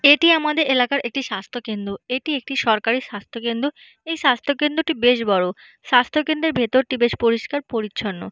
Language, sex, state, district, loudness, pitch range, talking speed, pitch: Bengali, female, West Bengal, Purulia, -20 LUFS, 225-285 Hz, 135 wpm, 250 Hz